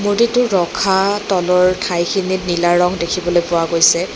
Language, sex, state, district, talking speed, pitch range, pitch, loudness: Assamese, female, Assam, Kamrup Metropolitan, 130 wpm, 175-190 Hz, 180 Hz, -15 LUFS